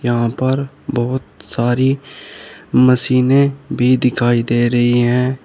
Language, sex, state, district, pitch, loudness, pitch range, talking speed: Hindi, male, Uttar Pradesh, Shamli, 125 Hz, -16 LUFS, 120-130 Hz, 110 wpm